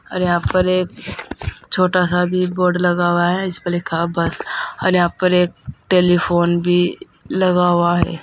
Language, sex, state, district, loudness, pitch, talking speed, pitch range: Hindi, female, Uttar Pradesh, Saharanpur, -17 LUFS, 180 Hz, 175 wpm, 175-185 Hz